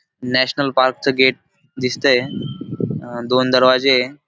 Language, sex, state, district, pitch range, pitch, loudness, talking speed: Marathi, male, Maharashtra, Dhule, 125-135 Hz, 130 Hz, -17 LUFS, 140 wpm